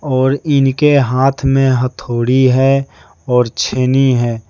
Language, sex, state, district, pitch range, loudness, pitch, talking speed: Hindi, male, Jharkhand, Deoghar, 125-135 Hz, -13 LUFS, 130 Hz, 120 wpm